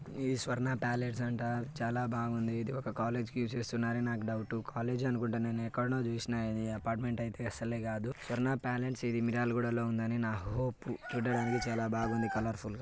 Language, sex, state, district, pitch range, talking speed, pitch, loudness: Telugu, male, Telangana, Nalgonda, 115-120 Hz, 155 wpm, 120 Hz, -35 LUFS